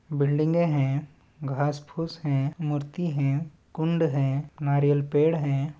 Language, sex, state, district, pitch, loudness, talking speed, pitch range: Chhattisgarhi, male, Chhattisgarh, Balrampur, 145 Hz, -26 LUFS, 125 wpm, 140-160 Hz